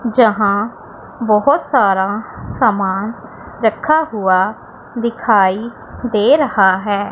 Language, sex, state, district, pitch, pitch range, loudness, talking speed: Hindi, female, Punjab, Pathankot, 215 Hz, 200-235 Hz, -15 LUFS, 85 wpm